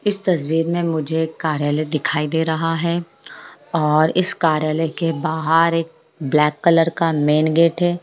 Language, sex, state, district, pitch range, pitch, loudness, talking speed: Hindi, male, Bihar, Madhepura, 155-170 Hz, 160 Hz, -18 LUFS, 170 wpm